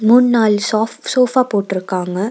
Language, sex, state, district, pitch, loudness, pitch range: Tamil, female, Tamil Nadu, Nilgiris, 215 Hz, -15 LUFS, 200-245 Hz